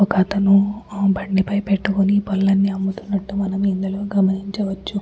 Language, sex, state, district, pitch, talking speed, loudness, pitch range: Telugu, female, Telangana, Nalgonda, 195 Hz, 95 wpm, -19 LUFS, 195-200 Hz